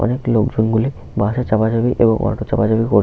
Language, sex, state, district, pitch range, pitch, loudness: Bengali, male, West Bengal, Paschim Medinipur, 110-120 Hz, 110 Hz, -17 LUFS